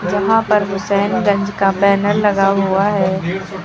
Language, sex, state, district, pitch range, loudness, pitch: Hindi, female, Uttar Pradesh, Lucknow, 195-205 Hz, -15 LUFS, 200 Hz